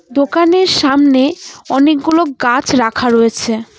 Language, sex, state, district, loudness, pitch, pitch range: Bengali, female, West Bengal, Cooch Behar, -12 LUFS, 280 Hz, 245-320 Hz